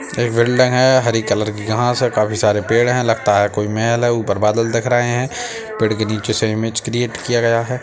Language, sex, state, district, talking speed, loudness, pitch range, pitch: Hindi, male, Bihar, Darbhanga, 230 wpm, -17 LUFS, 110-120 Hz, 115 Hz